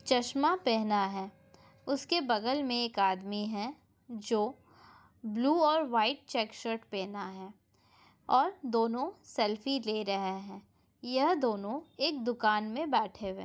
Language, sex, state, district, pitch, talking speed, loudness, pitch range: Hindi, female, Andhra Pradesh, Anantapur, 230 Hz, 140 wpm, -32 LUFS, 210-270 Hz